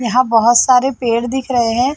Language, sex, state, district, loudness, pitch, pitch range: Hindi, female, Chhattisgarh, Sarguja, -13 LUFS, 245 Hz, 235-255 Hz